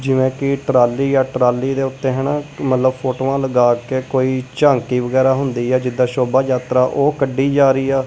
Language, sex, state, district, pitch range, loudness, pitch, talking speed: Punjabi, male, Punjab, Kapurthala, 130-135 Hz, -17 LUFS, 130 Hz, 185 wpm